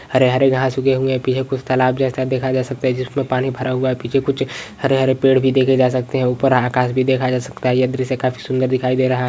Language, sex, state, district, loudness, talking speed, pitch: Hindi, male, Uttarakhand, Uttarkashi, -18 LUFS, 270 wpm, 130 Hz